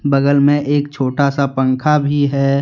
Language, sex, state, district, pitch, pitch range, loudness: Hindi, male, Jharkhand, Deoghar, 140 Hz, 140-145 Hz, -15 LUFS